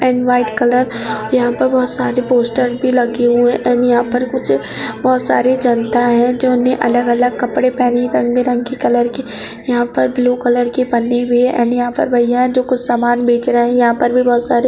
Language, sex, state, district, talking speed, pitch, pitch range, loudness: Hindi, male, Jharkhand, Jamtara, 215 wpm, 245 Hz, 240-250 Hz, -14 LUFS